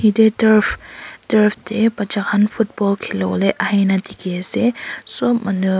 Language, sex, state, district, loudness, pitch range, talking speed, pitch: Nagamese, female, Nagaland, Kohima, -17 LUFS, 195-220 Hz, 135 wpm, 205 Hz